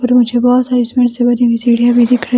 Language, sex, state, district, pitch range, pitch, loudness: Hindi, female, Himachal Pradesh, Shimla, 240-250 Hz, 245 Hz, -12 LUFS